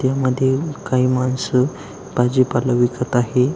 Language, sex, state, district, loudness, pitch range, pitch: Marathi, male, Maharashtra, Aurangabad, -19 LUFS, 125-130 Hz, 130 Hz